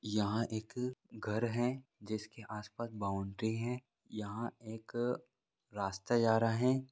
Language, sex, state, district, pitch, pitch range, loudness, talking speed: Hindi, male, Bihar, Vaishali, 115 Hz, 105-120 Hz, -37 LUFS, 130 wpm